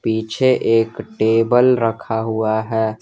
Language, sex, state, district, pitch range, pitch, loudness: Hindi, male, Jharkhand, Garhwa, 110-115 Hz, 110 Hz, -17 LUFS